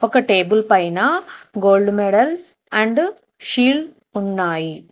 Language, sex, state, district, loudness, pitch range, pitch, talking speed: Telugu, female, Telangana, Hyderabad, -17 LUFS, 195-290 Hz, 215 Hz, 95 wpm